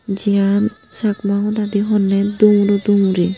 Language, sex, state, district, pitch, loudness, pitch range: Chakma, female, Tripura, Unakoti, 205 Hz, -16 LUFS, 200-210 Hz